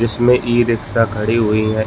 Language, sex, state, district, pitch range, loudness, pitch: Hindi, male, Uttar Pradesh, Budaun, 110-120 Hz, -16 LUFS, 115 Hz